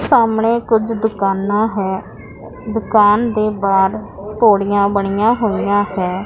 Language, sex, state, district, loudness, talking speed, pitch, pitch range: Hindi, female, Punjab, Pathankot, -15 LUFS, 60 wpm, 210 Hz, 200-220 Hz